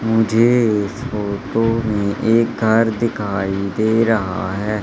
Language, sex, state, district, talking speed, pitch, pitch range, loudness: Hindi, male, Madhya Pradesh, Katni, 125 wpm, 110 Hz, 100-115 Hz, -18 LUFS